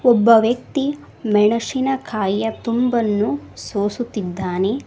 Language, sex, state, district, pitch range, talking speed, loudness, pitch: Kannada, female, Karnataka, Koppal, 200-245 Hz, 60 wpm, -19 LUFS, 225 Hz